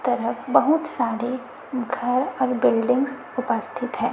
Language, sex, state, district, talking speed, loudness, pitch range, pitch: Hindi, female, Chhattisgarh, Raipur, 115 wpm, -23 LUFS, 245-265 Hz, 255 Hz